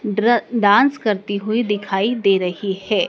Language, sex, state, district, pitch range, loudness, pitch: Hindi, female, Madhya Pradesh, Dhar, 200-230 Hz, -18 LUFS, 210 Hz